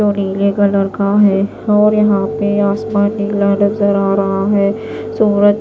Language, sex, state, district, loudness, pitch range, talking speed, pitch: Hindi, female, Maharashtra, Washim, -14 LUFS, 200-210 Hz, 160 wpm, 205 Hz